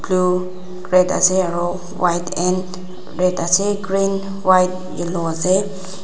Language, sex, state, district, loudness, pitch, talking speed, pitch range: Nagamese, female, Nagaland, Dimapur, -18 LUFS, 185 Hz, 120 wpm, 180-185 Hz